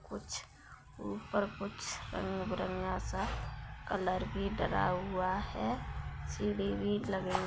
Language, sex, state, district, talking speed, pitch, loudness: Hindi, female, Bihar, Saran, 110 wpm, 180 Hz, -37 LUFS